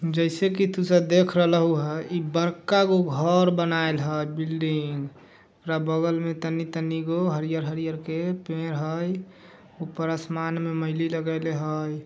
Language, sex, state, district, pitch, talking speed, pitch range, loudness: Hindi, male, Bihar, Darbhanga, 165 Hz, 135 wpm, 160-175 Hz, -25 LUFS